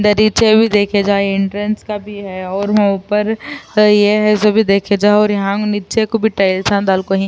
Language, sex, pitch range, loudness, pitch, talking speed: Urdu, female, 200-210 Hz, -14 LUFS, 205 Hz, 205 wpm